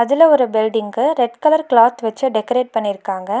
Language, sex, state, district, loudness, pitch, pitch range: Tamil, female, Tamil Nadu, Nilgiris, -16 LUFS, 235 Hz, 220-265 Hz